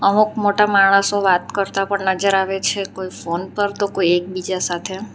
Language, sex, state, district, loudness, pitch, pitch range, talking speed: Gujarati, female, Gujarat, Valsad, -18 LUFS, 195 Hz, 185-200 Hz, 185 wpm